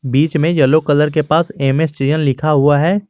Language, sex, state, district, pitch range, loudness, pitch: Hindi, male, Jharkhand, Garhwa, 145-160 Hz, -14 LUFS, 150 Hz